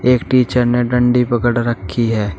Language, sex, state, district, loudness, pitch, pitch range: Hindi, male, Uttar Pradesh, Shamli, -15 LUFS, 120 Hz, 115-125 Hz